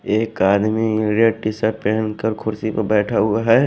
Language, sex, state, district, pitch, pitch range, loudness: Hindi, male, Haryana, Jhajjar, 110 Hz, 105-110 Hz, -19 LUFS